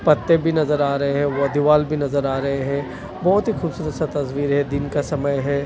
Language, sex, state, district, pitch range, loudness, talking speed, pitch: Hindi, male, Delhi, New Delhi, 140-155 Hz, -20 LUFS, 245 wpm, 145 Hz